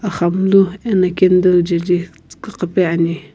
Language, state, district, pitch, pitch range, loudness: Sumi, Nagaland, Kohima, 180 Hz, 175-190 Hz, -15 LUFS